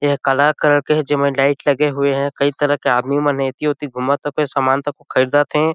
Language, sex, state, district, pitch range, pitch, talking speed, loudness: Chhattisgarhi, male, Chhattisgarh, Sarguja, 140-145 Hz, 145 Hz, 240 wpm, -17 LUFS